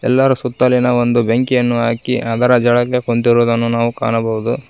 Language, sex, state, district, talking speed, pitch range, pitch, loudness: Kannada, male, Karnataka, Koppal, 130 wpm, 115-125 Hz, 120 Hz, -15 LUFS